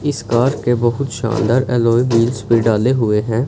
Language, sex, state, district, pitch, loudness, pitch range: Hindi, male, Punjab, Fazilka, 120 Hz, -16 LUFS, 115-125 Hz